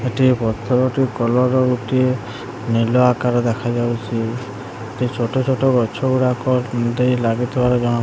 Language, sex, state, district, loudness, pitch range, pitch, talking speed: Odia, male, Odisha, Sambalpur, -18 LUFS, 120-125 Hz, 125 Hz, 125 wpm